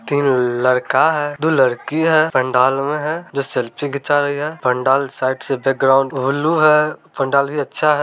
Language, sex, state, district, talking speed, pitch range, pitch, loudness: Maithili, male, Bihar, Samastipur, 165 wpm, 130-150 Hz, 140 Hz, -17 LUFS